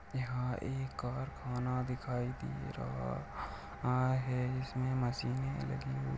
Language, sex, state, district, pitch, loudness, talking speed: Hindi, male, Chhattisgarh, Balrampur, 125 Hz, -38 LUFS, 105 wpm